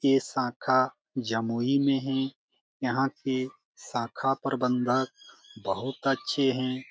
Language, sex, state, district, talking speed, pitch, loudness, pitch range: Hindi, male, Bihar, Jamui, 105 wpm, 130 Hz, -28 LUFS, 125-135 Hz